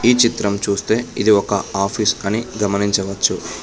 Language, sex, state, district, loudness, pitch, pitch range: Telugu, male, Telangana, Hyderabad, -18 LUFS, 100 Hz, 100-110 Hz